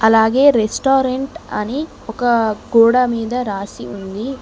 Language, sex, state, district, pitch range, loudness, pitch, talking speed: Telugu, female, Telangana, Mahabubabad, 220-265 Hz, -16 LUFS, 235 Hz, 110 wpm